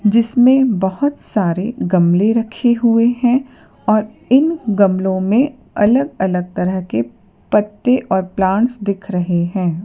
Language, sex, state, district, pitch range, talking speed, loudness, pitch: Hindi, female, Madhya Pradesh, Dhar, 190-245 Hz, 120 wpm, -16 LUFS, 210 Hz